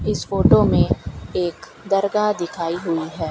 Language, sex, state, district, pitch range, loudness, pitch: Hindi, female, Rajasthan, Bikaner, 165-195 Hz, -20 LUFS, 175 Hz